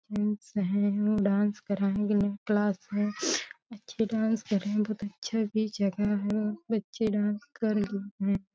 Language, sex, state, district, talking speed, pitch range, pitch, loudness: Hindi, female, Uttar Pradesh, Deoria, 145 wpm, 205-215 Hz, 210 Hz, -29 LUFS